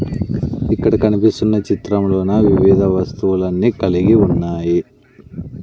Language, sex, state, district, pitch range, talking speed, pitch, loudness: Telugu, male, Andhra Pradesh, Sri Satya Sai, 95-110 Hz, 95 wpm, 100 Hz, -15 LUFS